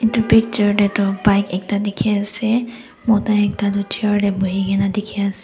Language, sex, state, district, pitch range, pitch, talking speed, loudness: Nagamese, female, Nagaland, Dimapur, 200-220 Hz, 205 Hz, 165 wpm, -18 LUFS